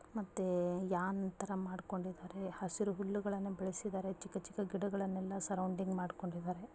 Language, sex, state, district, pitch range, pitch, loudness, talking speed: Kannada, female, Karnataka, Bijapur, 185-195 Hz, 190 Hz, -40 LUFS, 90 wpm